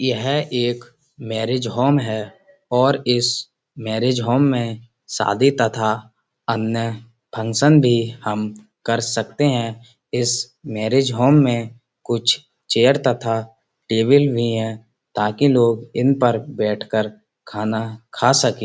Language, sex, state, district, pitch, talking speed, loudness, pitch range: Hindi, male, Uttar Pradesh, Muzaffarnagar, 120 Hz, 120 wpm, -19 LUFS, 110-125 Hz